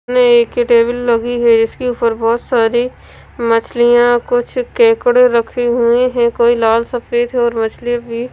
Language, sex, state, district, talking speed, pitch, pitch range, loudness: Hindi, female, Punjab, Fazilka, 150 wpm, 240 Hz, 235-245 Hz, -13 LUFS